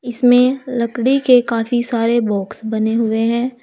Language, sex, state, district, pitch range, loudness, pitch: Hindi, female, Uttar Pradesh, Saharanpur, 230-245 Hz, -16 LUFS, 235 Hz